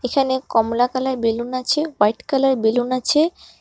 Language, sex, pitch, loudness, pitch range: Bengali, male, 255 Hz, -19 LUFS, 235-270 Hz